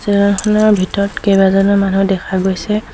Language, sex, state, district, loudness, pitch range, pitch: Assamese, female, Assam, Sonitpur, -13 LUFS, 195-205 Hz, 200 Hz